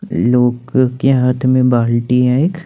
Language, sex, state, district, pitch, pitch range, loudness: Hindi, male, Chandigarh, Chandigarh, 125 Hz, 120-130 Hz, -14 LUFS